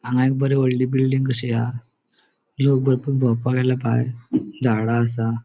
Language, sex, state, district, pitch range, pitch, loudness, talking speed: Konkani, male, Goa, North and South Goa, 120-130 Hz, 125 Hz, -21 LUFS, 155 wpm